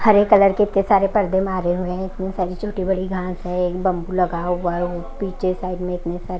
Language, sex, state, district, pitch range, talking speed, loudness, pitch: Hindi, female, Haryana, Jhajjar, 180-195 Hz, 235 wpm, -20 LUFS, 185 Hz